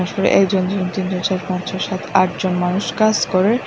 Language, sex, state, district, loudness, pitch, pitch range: Bengali, female, Tripura, West Tripura, -18 LUFS, 190 Hz, 185-195 Hz